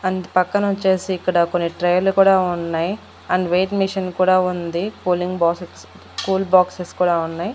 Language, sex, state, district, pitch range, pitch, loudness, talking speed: Telugu, female, Andhra Pradesh, Annamaya, 175-190 Hz, 180 Hz, -19 LUFS, 145 wpm